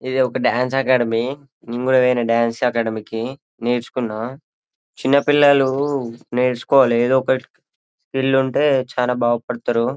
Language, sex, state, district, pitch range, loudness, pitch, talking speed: Telugu, male, Telangana, Karimnagar, 120-135 Hz, -19 LUFS, 125 Hz, 110 wpm